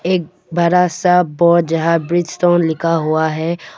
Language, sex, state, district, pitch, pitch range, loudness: Hindi, female, Arunachal Pradesh, Papum Pare, 170 Hz, 165-175 Hz, -15 LUFS